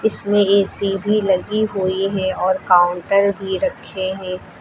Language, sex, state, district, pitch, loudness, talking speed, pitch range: Hindi, female, Uttar Pradesh, Lucknow, 195 Hz, -18 LUFS, 145 wpm, 190-200 Hz